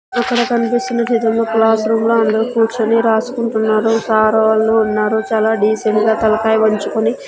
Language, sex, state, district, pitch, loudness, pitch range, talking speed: Telugu, female, Andhra Pradesh, Sri Satya Sai, 220 Hz, -14 LUFS, 220-230 Hz, 130 wpm